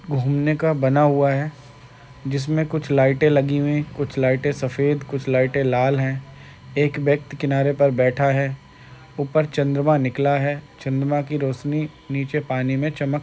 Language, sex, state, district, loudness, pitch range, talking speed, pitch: Hindi, male, Uttar Pradesh, Gorakhpur, -21 LUFS, 135-145 Hz, 160 wpm, 140 Hz